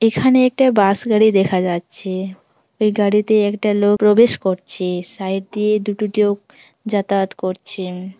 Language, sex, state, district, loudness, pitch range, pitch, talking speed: Bengali, female, West Bengal, Jhargram, -17 LUFS, 190-215 Hz, 205 Hz, 145 wpm